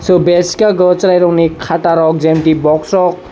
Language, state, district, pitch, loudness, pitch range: Kokborok, Tripura, Dhalai, 175 Hz, -11 LUFS, 160-180 Hz